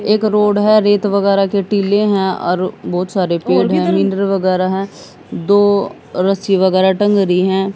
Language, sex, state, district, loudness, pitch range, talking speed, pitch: Hindi, female, Haryana, Jhajjar, -14 LUFS, 185-205 Hz, 160 wpm, 195 Hz